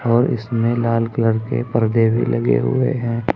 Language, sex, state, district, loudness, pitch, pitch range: Hindi, male, Uttar Pradesh, Saharanpur, -18 LUFS, 115 Hz, 110-120 Hz